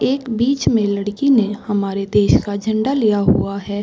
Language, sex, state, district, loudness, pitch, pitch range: Hindi, female, Bihar, Gaya, -17 LUFS, 210 Hz, 200-235 Hz